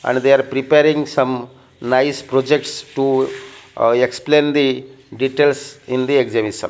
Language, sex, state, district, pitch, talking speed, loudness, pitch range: English, male, Odisha, Malkangiri, 135 Hz, 125 wpm, -17 LUFS, 130-145 Hz